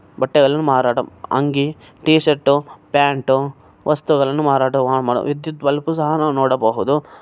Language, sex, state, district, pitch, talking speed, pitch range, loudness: Kannada, male, Karnataka, Bellary, 140 Hz, 115 wpm, 130-150 Hz, -17 LUFS